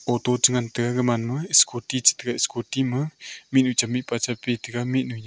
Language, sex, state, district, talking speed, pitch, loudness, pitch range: Wancho, male, Arunachal Pradesh, Longding, 215 wpm, 125 Hz, -22 LUFS, 120-130 Hz